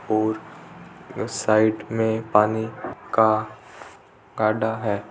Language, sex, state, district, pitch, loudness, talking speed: Hindi, male, Rajasthan, Churu, 110 Hz, -22 LUFS, 80 wpm